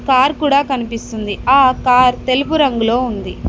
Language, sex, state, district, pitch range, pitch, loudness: Telugu, female, Telangana, Mahabubabad, 230-275 Hz, 255 Hz, -14 LUFS